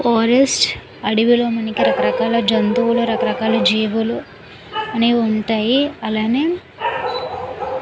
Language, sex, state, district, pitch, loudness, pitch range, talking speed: Telugu, female, Andhra Pradesh, Visakhapatnam, 235 Hz, -17 LUFS, 225-255 Hz, 85 wpm